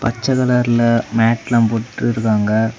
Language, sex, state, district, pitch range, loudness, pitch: Tamil, male, Tamil Nadu, Kanyakumari, 115-120 Hz, -16 LUFS, 115 Hz